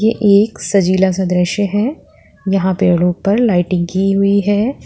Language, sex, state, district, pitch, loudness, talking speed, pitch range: Hindi, female, Uttar Pradesh, Lalitpur, 195 Hz, -14 LUFS, 175 wpm, 185-205 Hz